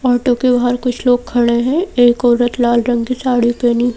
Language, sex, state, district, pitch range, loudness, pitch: Hindi, female, Madhya Pradesh, Bhopal, 240-250 Hz, -14 LUFS, 245 Hz